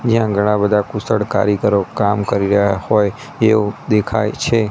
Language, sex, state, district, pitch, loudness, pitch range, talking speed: Gujarati, male, Gujarat, Gandhinagar, 105 Hz, -16 LUFS, 100-110 Hz, 150 wpm